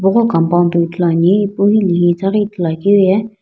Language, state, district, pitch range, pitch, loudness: Sumi, Nagaland, Dimapur, 175-205 Hz, 190 Hz, -13 LUFS